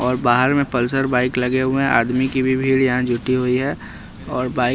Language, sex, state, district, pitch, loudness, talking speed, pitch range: Hindi, male, Bihar, West Champaran, 130 Hz, -18 LUFS, 215 wpm, 125-130 Hz